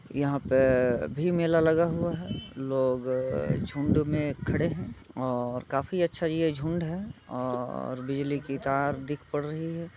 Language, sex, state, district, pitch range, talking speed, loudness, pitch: Hindi, male, Bihar, Muzaffarpur, 130-165 Hz, 155 wpm, -29 LUFS, 145 Hz